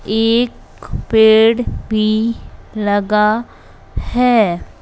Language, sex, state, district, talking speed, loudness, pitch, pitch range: Hindi, male, Madhya Pradesh, Bhopal, 60 wpm, -15 LUFS, 220 Hz, 215-230 Hz